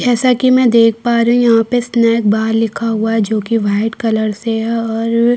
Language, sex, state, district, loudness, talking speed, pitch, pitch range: Hindi, female, Chhattisgarh, Kabirdham, -14 LUFS, 235 wpm, 230 Hz, 220-235 Hz